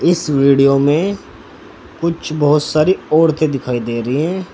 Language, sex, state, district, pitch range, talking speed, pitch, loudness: Hindi, male, Uttar Pradesh, Saharanpur, 140-170 Hz, 145 wpm, 150 Hz, -15 LUFS